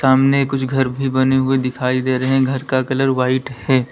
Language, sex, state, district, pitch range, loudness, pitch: Hindi, male, Uttar Pradesh, Lalitpur, 130-135 Hz, -17 LUFS, 130 Hz